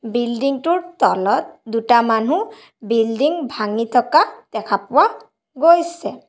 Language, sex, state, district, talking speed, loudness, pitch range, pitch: Assamese, female, Assam, Sonitpur, 105 wpm, -18 LUFS, 230-335 Hz, 255 Hz